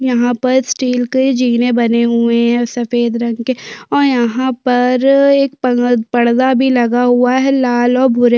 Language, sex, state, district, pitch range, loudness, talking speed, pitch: Hindi, female, Chhattisgarh, Sukma, 240-260 Hz, -13 LUFS, 170 wpm, 245 Hz